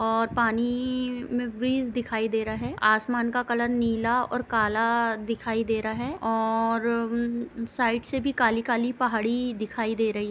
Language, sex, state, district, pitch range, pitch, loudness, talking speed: Hindi, female, Bihar, Saran, 225-245 Hz, 235 Hz, -26 LUFS, 165 wpm